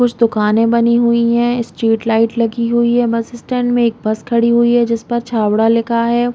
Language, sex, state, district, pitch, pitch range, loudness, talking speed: Hindi, female, Chhattisgarh, Raigarh, 235 Hz, 230-240 Hz, -14 LUFS, 225 wpm